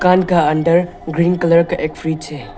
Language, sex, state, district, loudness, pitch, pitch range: Hindi, male, Arunachal Pradesh, Lower Dibang Valley, -16 LUFS, 170 Hz, 155-175 Hz